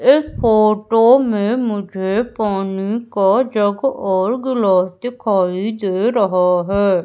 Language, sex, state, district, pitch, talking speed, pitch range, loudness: Hindi, female, Madhya Pradesh, Umaria, 210 Hz, 110 wpm, 195-235 Hz, -16 LUFS